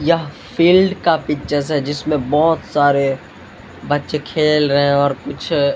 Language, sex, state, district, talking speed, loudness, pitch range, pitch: Hindi, male, Bihar, Patna, 145 wpm, -16 LUFS, 140-155 Hz, 145 Hz